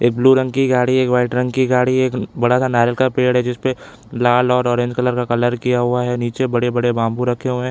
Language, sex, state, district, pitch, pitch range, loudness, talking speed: Hindi, male, Chhattisgarh, Bilaspur, 125 Hz, 120-125 Hz, -17 LUFS, 280 wpm